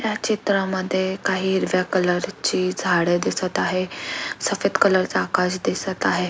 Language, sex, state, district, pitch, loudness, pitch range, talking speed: Marathi, female, Maharashtra, Aurangabad, 185 Hz, -22 LUFS, 180-190 Hz, 145 wpm